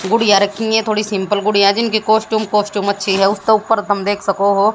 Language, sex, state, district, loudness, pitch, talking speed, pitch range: Hindi, female, Haryana, Jhajjar, -15 LUFS, 205 Hz, 215 wpm, 200-220 Hz